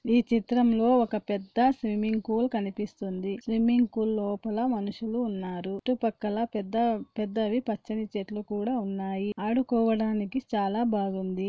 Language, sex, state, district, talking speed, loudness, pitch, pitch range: Telugu, female, Andhra Pradesh, Anantapur, 125 wpm, -28 LUFS, 220 Hz, 205-235 Hz